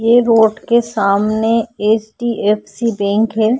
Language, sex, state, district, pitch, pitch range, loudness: Hindi, female, Maharashtra, Chandrapur, 220 Hz, 210-230 Hz, -15 LUFS